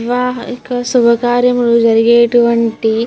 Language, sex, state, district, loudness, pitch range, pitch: Telugu, female, Andhra Pradesh, Guntur, -12 LUFS, 235-245 Hz, 240 Hz